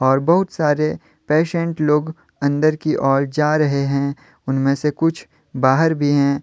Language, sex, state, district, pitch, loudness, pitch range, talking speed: Hindi, male, Jharkhand, Deoghar, 150 Hz, -18 LUFS, 140-155 Hz, 160 wpm